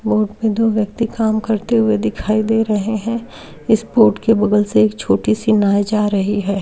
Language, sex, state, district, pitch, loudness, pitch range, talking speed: Hindi, male, Uttar Pradesh, Varanasi, 210 Hz, -16 LUFS, 200-220 Hz, 200 wpm